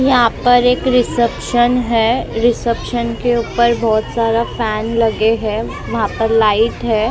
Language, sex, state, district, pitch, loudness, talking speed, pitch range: Hindi, female, Maharashtra, Mumbai Suburban, 230 Hz, -15 LUFS, 160 wpm, 225-240 Hz